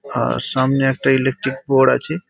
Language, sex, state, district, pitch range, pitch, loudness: Bengali, male, West Bengal, Paschim Medinipur, 130-135 Hz, 135 Hz, -17 LUFS